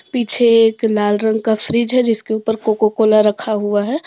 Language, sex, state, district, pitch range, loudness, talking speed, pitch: Hindi, female, Jharkhand, Deoghar, 215-235 Hz, -15 LUFS, 205 wpm, 220 Hz